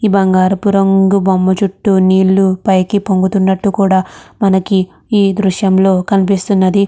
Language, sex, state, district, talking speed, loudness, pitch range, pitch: Telugu, female, Andhra Pradesh, Krishna, 120 wpm, -12 LUFS, 190-200 Hz, 195 Hz